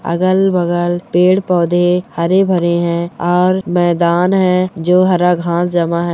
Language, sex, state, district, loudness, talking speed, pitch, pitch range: Hindi, female, Bihar, Bhagalpur, -13 LUFS, 135 wpm, 175 Hz, 170-180 Hz